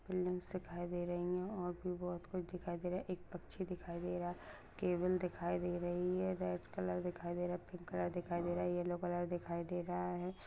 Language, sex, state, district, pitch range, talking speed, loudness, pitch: Hindi, female, Bihar, Madhepura, 175-180 Hz, 240 wpm, -41 LUFS, 175 Hz